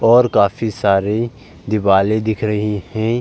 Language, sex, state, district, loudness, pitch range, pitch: Hindi, male, Uttar Pradesh, Jalaun, -17 LUFS, 100-115 Hz, 110 Hz